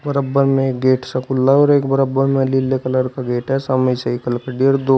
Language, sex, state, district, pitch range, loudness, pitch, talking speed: Hindi, male, Uttar Pradesh, Shamli, 130-135 Hz, -17 LUFS, 130 Hz, 195 wpm